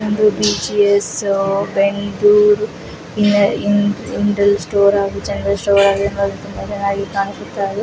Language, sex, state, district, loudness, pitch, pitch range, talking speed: Kannada, female, Karnataka, Dakshina Kannada, -16 LUFS, 200 Hz, 200-205 Hz, 40 wpm